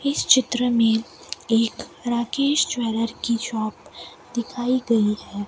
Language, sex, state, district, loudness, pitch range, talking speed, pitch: Hindi, female, Rajasthan, Bikaner, -22 LUFS, 225-245 Hz, 120 wpm, 235 Hz